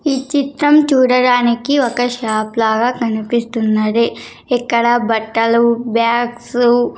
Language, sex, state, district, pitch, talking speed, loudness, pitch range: Telugu, female, Andhra Pradesh, Sri Satya Sai, 240 Hz, 95 wpm, -15 LUFS, 230-250 Hz